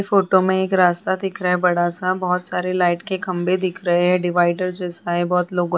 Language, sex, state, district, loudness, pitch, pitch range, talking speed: Hindi, female, Bihar, Vaishali, -19 LUFS, 180 Hz, 175-185 Hz, 205 wpm